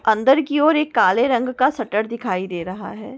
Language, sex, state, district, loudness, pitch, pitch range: Hindi, female, Goa, North and South Goa, -19 LUFS, 235 Hz, 210-265 Hz